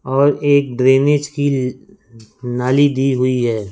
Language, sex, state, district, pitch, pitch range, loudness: Hindi, male, Madhya Pradesh, Katni, 130 Hz, 125-140 Hz, -16 LUFS